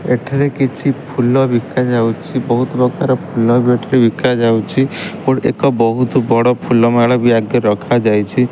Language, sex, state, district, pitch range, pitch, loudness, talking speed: Odia, male, Odisha, Khordha, 120-130 Hz, 125 Hz, -14 LUFS, 140 wpm